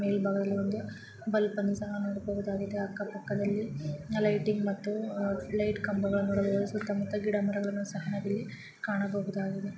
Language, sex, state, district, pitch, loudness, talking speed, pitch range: Kannada, female, Karnataka, Gulbarga, 200 Hz, -32 LUFS, 115 wpm, 200-210 Hz